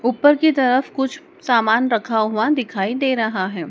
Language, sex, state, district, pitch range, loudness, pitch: Hindi, female, Madhya Pradesh, Dhar, 220-275 Hz, -18 LUFS, 245 Hz